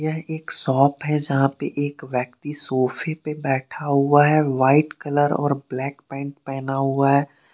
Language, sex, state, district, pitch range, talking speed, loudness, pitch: Hindi, male, Jharkhand, Deoghar, 135-150 Hz, 165 wpm, -21 LUFS, 140 Hz